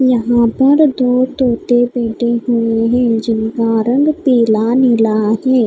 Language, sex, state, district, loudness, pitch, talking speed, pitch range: Hindi, female, Odisha, Khordha, -13 LUFS, 240 Hz, 125 wpm, 230-255 Hz